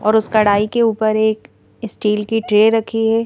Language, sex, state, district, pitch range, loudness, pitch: Hindi, female, Madhya Pradesh, Bhopal, 215-225 Hz, -16 LUFS, 220 Hz